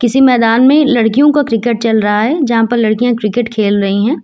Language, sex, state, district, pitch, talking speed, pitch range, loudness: Hindi, female, Uttar Pradesh, Lucknow, 235 Hz, 225 wpm, 220-255 Hz, -11 LUFS